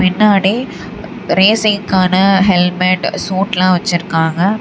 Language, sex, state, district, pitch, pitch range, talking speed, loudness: Tamil, female, Tamil Nadu, Namakkal, 190 Hz, 185-200 Hz, 80 wpm, -13 LUFS